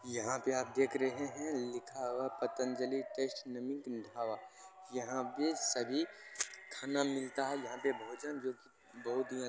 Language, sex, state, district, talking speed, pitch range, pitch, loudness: Maithili, male, Bihar, Supaul, 165 wpm, 125-140 Hz, 130 Hz, -39 LUFS